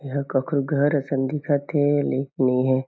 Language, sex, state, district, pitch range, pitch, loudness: Chhattisgarhi, male, Chhattisgarh, Kabirdham, 135-145 Hz, 140 Hz, -23 LUFS